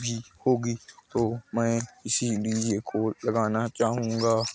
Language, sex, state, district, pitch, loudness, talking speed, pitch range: Hindi, male, Chhattisgarh, Kabirdham, 115 Hz, -27 LUFS, 105 wpm, 110-120 Hz